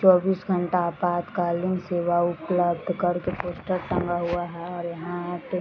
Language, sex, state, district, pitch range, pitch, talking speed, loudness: Hindi, female, Bihar, East Champaran, 175-180 Hz, 175 Hz, 150 wpm, -26 LUFS